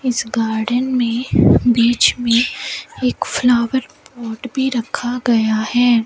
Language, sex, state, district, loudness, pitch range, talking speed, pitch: Hindi, female, Rajasthan, Bikaner, -17 LUFS, 235-250 Hz, 120 wpm, 245 Hz